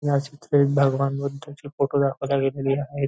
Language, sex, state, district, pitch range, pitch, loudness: Marathi, male, Maharashtra, Nagpur, 140-145 Hz, 140 Hz, -23 LUFS